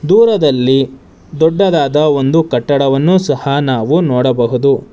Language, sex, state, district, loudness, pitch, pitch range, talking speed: Kannada, male, Karnataka, Bangalore, -12 LUFS, 140 Hz, 130-160 Hz, 85 wpm